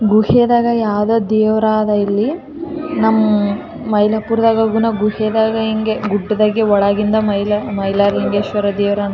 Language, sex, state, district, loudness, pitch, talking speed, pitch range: Kannada, female, Karnataka, Raichur, -15 LUFS, 215 Hz, 100 wpm, 205-220 Hz